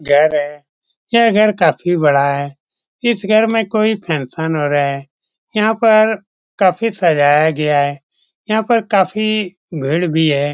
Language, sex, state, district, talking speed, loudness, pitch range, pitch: Hindi, male, Bihar, Saran, 155 wpm, -15 LUFS, 145-215 Hz, 170 Hz